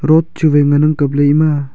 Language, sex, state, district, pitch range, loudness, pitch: Wancho, male, Arunachal Pradesh, Longding, 145-155 Hz, -12 LUFS, 150 Hz